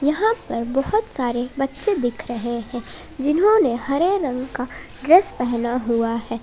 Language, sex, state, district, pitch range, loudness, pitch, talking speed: Hindi, female, Jharkhand, Palamu, 240-335 Hz, -19 LUFS, 255 Hz, 150 wpm